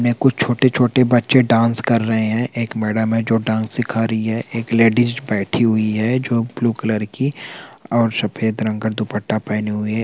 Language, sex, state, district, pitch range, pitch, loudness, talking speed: Hindi, male, Chhattisgarh, Balrampur, 110-120 Hz, 115 Hz, -18 LUFS, 190 wpm